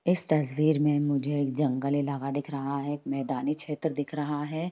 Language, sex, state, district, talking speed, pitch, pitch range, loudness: Hindi, female, Bihar, Jahanabad, 205 wpm, 145 Hz, 140-150 Hz, -28 LUFS